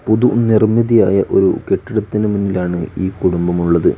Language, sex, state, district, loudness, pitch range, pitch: Malayalam, male, Kerala, Wayanad, -15 LUFS, 90-110 Hz, 105 Hz